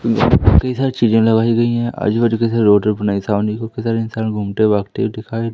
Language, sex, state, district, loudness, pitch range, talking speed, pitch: Hindi, male, Madhya Pradesh, Umaria, -16 LUFS, 105-115 Hz, 175 wpm, 110 Hz